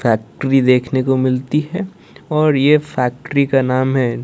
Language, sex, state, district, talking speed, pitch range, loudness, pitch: Hindi, female, Odisha, Malkangiri, 155 wpm, 125-150 Hz, -16 LUFS, 135 Hz